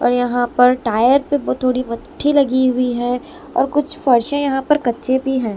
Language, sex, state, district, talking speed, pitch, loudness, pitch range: Hindi, female, Delhi, New Delhi, 205 wpm, 255 Hz, -17 LUFS, 245-280 Hz